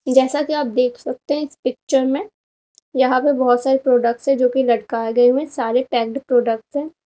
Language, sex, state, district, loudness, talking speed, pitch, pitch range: Hindi, female, Uttar Pradesh, Lalitpur, -18 LUFS, 205 wpm, 260 Hz, 245-280 Hz